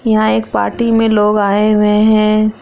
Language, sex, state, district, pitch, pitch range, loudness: Hindi, female, Bihar, Araria, 215 Hz, 205-215 Hz, -12 LUFS